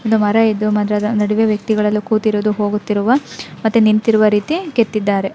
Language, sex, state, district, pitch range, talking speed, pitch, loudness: Kannada, female, Karnataka, Dharwad, 210-220 Hz, 145 wpm, 215 Hz, -15 LUFS